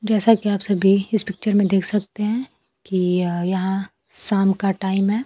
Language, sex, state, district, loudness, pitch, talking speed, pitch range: Hindi, female, Bihar, Kaimur, -20 LUFS, 195 Hz, 195 wpm, 190-210 Hz